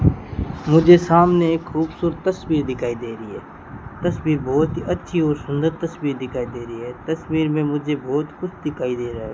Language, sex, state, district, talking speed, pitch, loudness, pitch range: Hindi, male, Rajasthan, Bikaner, 185 wpm, 150 Hz, -21 LUFS, 130-165 Hz